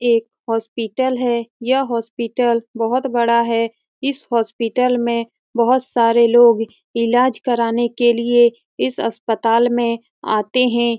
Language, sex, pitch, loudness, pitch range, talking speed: Hindi, female, 235 Hz, -18 LUFS, 230-245 Hz, 125 wpm